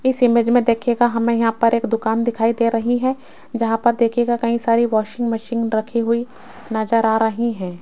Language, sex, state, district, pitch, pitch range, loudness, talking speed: Hindi, female, Rajasthan, Jaipur, 235 Hz, 225-240 Hz, -18 LUFS, 200 wpm